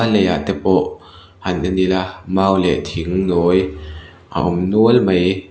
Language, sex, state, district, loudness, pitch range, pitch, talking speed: Mizo, male, Mizoram, Aizawl, -17 LUFS, 90-95 Hz, 95 Hz, 175 wpm